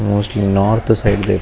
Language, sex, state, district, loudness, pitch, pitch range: Tulu, male, Karnataka, Dakshina Kannada, -15 LUFS, 105 Hz, 100-105 Hz